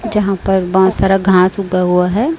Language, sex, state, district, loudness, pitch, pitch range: Hindi, female, Chhattisgarh, Raipur, -13 LUFS, 190 Hz, 185-200 Hz